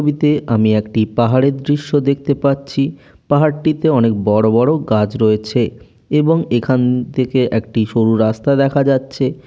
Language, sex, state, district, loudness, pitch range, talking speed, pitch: Bengali, male, West Bengal, Jalpaiguri, -15 LUFS, 115-145 Hz, 135 wpm, 130 Hz